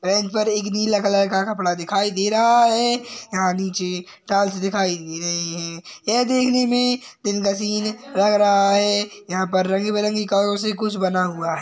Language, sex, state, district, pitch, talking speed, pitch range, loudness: Hindi, female, Uttar Pradesh, Hamirpur, 205 Hz, 170 wpm, 190-215 Hz, -20 LUFS